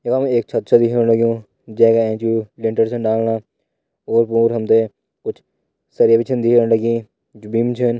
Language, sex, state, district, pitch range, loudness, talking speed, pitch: Hindi, male, Uttarakhand, Uttarkashi, 115-120 Hz, -17 LUFS, 180 wpm, 115 Hz